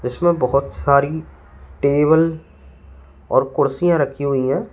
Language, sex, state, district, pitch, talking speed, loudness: Hindi, male, Uttar Pradesh, Lalitpur, 140 Hz, 115 wpm, -18 LUFS